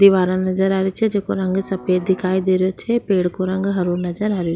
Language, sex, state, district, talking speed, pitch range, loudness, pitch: Rajasthani, female, Rajasthan, Nagaur, 250 wpm, 185-195 Hz, -19 LUFS, 190 Hz